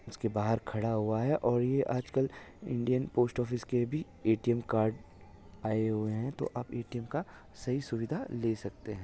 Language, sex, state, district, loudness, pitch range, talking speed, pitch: Hindi, male, Maharashtra, Solapur, -33 LUFS, 110-125 Hz, 185 wpm, 115 Hz